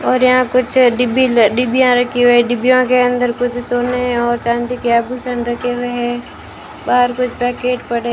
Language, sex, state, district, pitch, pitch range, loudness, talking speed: Hindi, female, Rajasthan, Bikaner, 245 Hz, 240-250 Hz, -14 LUFS, 185 wpm